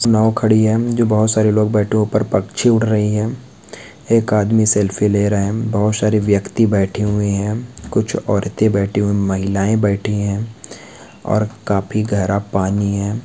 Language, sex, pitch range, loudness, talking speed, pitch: Hindi, male, 100-110 Hz, -17 LUFS, 170 wpm, 105 Hz